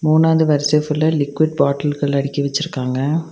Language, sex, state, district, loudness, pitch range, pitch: Tamil, female, Tamil Nadu, Nilgiris, -17 LUFS, 140-155 Hz, 150 Hz